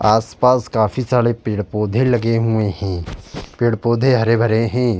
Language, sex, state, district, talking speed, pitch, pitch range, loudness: Hindi, male, Uttar Pradesh, Jalaun, 155 wpm, 115 Hz, 110-125 Hz, -17 LUFS